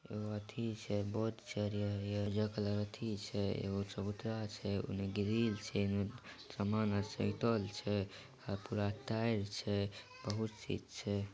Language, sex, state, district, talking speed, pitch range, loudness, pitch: Maithili, male, Bihar, Samastipur, 155 wpm, 100-110 Hz, -39 LUFS, 105 Hz